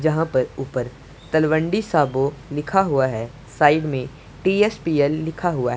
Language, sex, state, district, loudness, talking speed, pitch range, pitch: Hindi, male, Punjab, Pathankot, -21 LUFS, 145 wpm, 130-160 Hz, 145 Hz